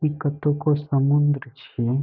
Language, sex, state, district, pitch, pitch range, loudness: Maithili, male, Bihar, Saharsa, 145 Hz, 140-150 Hz, -22 LUFS